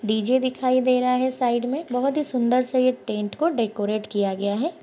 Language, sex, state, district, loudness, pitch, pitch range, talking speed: Hindi, female, Chhattisgarh, Jashpur, -23 LUFS, 250 Hz, 215-255 Hz, 210 wpm